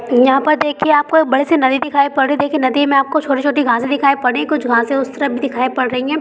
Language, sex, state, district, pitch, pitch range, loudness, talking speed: Hindi, female, Bihar, Begusarai, 275 Hz, 260-295 Hz, -15 LUFS, 290 wpm